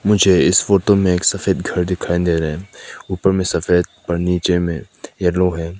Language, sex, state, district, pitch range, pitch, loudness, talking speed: Hindi, male, Nagaland, Kohima, 85-95 Hz, 90 Hz, -17 LUFS, 185 wpm